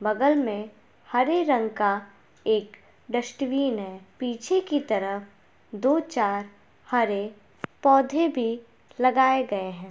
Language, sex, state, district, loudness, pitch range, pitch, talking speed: Hindi, female, Bihar, Gopalganj, -25 LUFS, 205-270 Hz, 235 Hz, 115 wpm